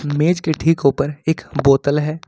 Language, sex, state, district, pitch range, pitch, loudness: Hindi, male, Jharkhand, Ranchi, 140-160 Hz, 150 Hz, -17 LUFS